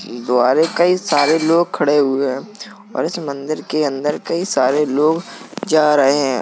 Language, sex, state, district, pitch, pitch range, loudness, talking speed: Hindi, female, Uttar Pradesh, Jalaun, 150 Hz, 140-170 Hz, -17 LUFS, 185 wpm